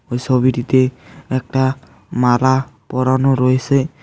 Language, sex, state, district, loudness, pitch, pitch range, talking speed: Bengali, male, West Bengal, Cooch Behar, -17 LUFS, 130 Hz, 125-130 Hz, 90 wpm